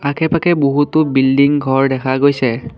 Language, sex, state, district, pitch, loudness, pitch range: Assamese, male, Assam, Kamrup Metropolitan, 140 Hz, -14 LUFS, 130-145 Hz